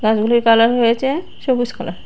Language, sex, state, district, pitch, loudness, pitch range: Bengali, female, Tripura, West Tripura, 235 Hz, -16 LUFS, 225-250 Hz